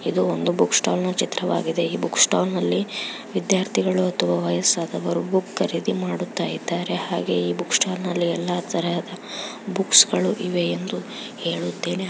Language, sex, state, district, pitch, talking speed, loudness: Kannada, female, Karnataka, Raichur, 175 Hz, 130 wpm, -22 LUFS